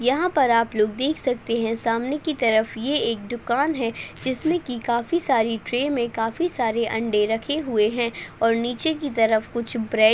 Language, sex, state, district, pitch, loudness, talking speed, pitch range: Hindi, female, Uttar Pradesh, Deoria, 235 Hz, -23 LUFS, 190 wpm, 225-270 Hz